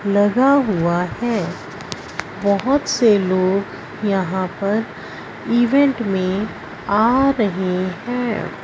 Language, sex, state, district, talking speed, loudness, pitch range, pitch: Hindi, female, Punjab, Fazilka, 90 wpm, -18 LUFS, 190-240 Hz, 205 Hz